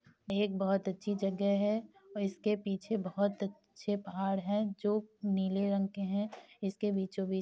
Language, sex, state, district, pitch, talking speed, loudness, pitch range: Hindi, female, Uttar Pradesh, Etah, 200 Hz, 170 wpm, -35 LUFS, 195-210 Hz